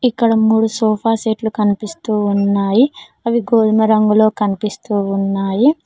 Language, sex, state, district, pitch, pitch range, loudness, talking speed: Telugu, female, Telangana, Mahabubabad, 220 Hz, 205-225 Hz, -15 LUFS, 125 wpm